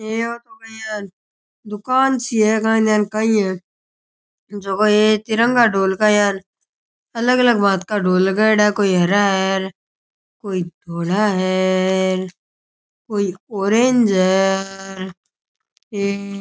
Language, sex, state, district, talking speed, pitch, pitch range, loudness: Rajasthani, male, Rajasthan, Churu, 115 wpm, 205 Hz, 190-220 Hz, -17 LUFS